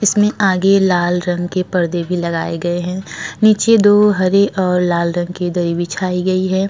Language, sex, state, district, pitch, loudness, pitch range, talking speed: Hindi, male, Uttar Pradesh, Jyotiba Phule Nagar, 180 Hz, -15 LUFS, 175-195 Hz, 190 wpm